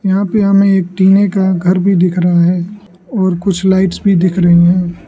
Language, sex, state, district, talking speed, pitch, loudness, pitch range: Hindi, male, Arunachal Pradesh, Lower Dibang Valley, 210 wpm, 185 Hz, -11 LUFS, 180-195 Hz